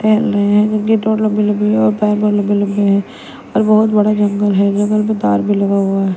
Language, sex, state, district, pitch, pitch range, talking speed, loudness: Hindi, female, Punjab, Kapurthala, 210 Hz, 200-215 Hz, 195 wpm, -14 LUFS